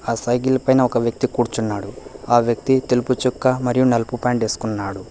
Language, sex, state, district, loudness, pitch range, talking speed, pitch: Telugu, male, Telangana, Hyderabad, -19 LUFS, 115-130 Hz, 150 wpm, 120 Hz